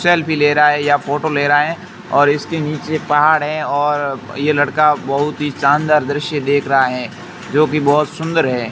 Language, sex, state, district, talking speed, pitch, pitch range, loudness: Hindi, male, Rajasthan, Barmer, 195 wpm, 145 Hz, 145-155 Hz, -15 LUFS